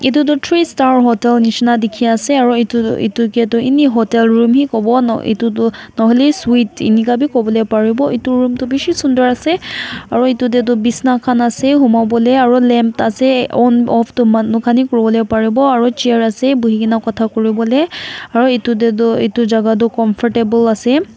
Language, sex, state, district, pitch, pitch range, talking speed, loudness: Nagamese, female, Nagaland, Kohima, 235 Hz, 230-255 Hz, 205 wpm, -13 LUFS